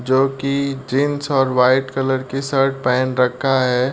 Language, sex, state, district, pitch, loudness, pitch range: Hindi, male, Uttar Pradesh, Deoria, 135 Hz, -18 LUFS, 130-135 Hz